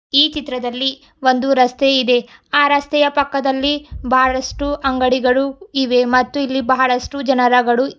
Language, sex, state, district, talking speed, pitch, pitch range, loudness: Kannada, female, Karnataka, Bidar, 115 wpm, 265 Hz, 255-280 Hz, -16 LUFS